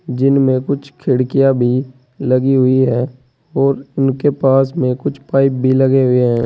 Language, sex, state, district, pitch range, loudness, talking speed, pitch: Hindi, male, Uttar Pradesh, Saharanpur, 130-135 Hz, -15 LUFS, 160 wpm, 130 Hz